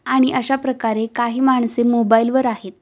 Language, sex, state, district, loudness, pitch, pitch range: Marathi, female, Maharashtra, Aurangabad, -17 LUFS, 240 Hz, 225-260 Hz